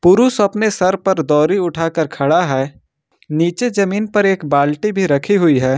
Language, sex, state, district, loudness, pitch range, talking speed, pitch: Hindi, male, Jharkhand, Ranchi, -15 LUFS, 150-200 Hz, 175 wpm, 175 Hz